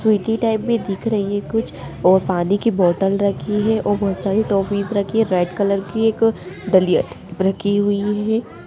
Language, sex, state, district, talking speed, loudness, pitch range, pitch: Hindi, female, Bihar, Madhepura, 165 wpm, -19 LUFS, 195-220 Hz, 200 Hz